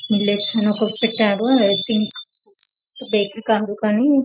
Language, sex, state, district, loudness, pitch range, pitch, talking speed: Telugu, female, Telangana, Karimnagar, -16 LUFS, 210-230 Hz, 215 Hz, 125 wpm